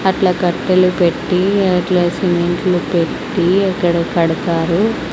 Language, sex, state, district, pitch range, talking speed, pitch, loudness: Telugu, female, Andhra Pradesh, Sri Satya Sai, 175-185 Hz, 95 wpm, 180 Hz, -15 LUFS